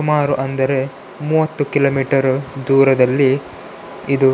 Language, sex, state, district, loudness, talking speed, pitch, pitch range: Kannada, male, Karnataka, Dakshina Kannada, -16 LUFS, 95 wpm, 135 Hz, 135-145 Hz